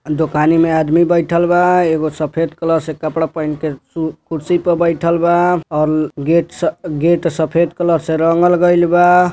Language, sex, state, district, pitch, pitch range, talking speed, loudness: Bhojpuri, male, Uttar Pradesh, Deoria, 165 Hz, 155-175 Hz, 155 wpm, -15 LUFS